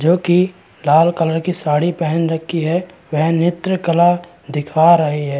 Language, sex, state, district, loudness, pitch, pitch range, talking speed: Hindi, male, Uttarakhand, Tehri Garhwal, -16 LUFS, 165 Hz, 155-175 Hz, 165 wpm